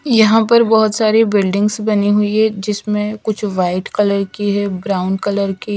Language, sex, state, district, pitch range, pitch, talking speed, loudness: Hindi, female, Chhattisgarh, Raipur, 200-215 Hz, 210 Hz, 175 wpm, -15 LUFS